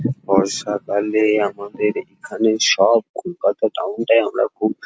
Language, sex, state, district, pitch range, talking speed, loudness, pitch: Bengali, male, West Bengal, Jhargram, 100-115 Hz, 125 wpm, -18 LUFS, 110 Hz